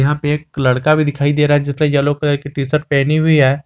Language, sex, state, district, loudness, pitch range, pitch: Hindi, male, Jharkhand, Garhwa, -15 LUFS, 140-150 Hz, 145 Hz